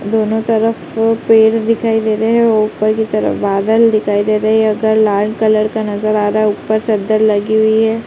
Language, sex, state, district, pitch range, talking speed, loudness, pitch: Hindi, female, Uttar Pradesh, Muzaffarnagar, 215-220 Hz, 240 wpm, -13 LUFS, 220 Hz